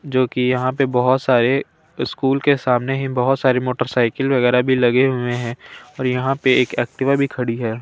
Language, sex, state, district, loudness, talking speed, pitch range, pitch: Hindi, male, Bihar, Kaimur, -18 LUFS, 200 wpm, 125-135 Hz, 130 Hz